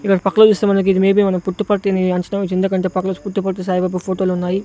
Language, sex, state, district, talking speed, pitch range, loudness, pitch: Telugu, male, Andhra Pradesh, Sri Satya Sai, 180 wpm, 185-200 Hz, -17 LUFS, 190 Hz